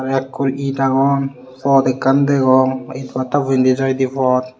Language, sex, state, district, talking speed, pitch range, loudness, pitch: Chakma, male, Tripura, Unakoti, 155 wpm, 130-135 Hz, -16 LUFS, 135 Hz